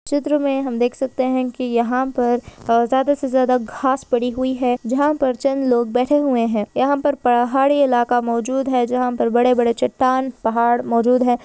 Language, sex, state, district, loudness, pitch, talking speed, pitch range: Hindi, female, Maharashtra, Sindhudurg, -18 LUFS, 250 Hz, 190 wpm, 240-265 Hz